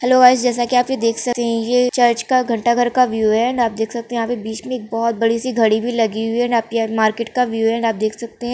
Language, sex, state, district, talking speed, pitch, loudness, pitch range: Hindi, female, Andhra Pradesh, Krishna, 325 wpm, 235 Hz, -17 LUFS, 225-245 Hz